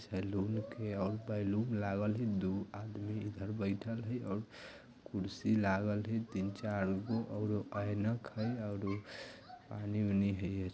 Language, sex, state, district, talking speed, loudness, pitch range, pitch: Bajjika, male, Bihar, Vaishali, 125 wpm, -38 LUFS, 100-110 Hz, 105 Hz